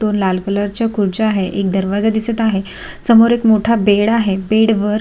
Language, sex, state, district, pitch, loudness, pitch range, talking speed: Marathi, female, Maharashtra, Sindhudurg, 210 Hz, -15 LUFS, 195-225 Hz, 180 wpm